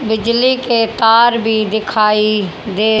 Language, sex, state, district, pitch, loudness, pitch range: Hindi, female, Haryana, Charkhi Dadri, 220 Hz, -13 LUFS, 215-235 Hz